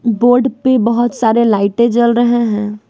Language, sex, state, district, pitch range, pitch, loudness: Hindi, female, Bihar, West Champaran, 225-240 Hz, 235 Hz, -13 LUFS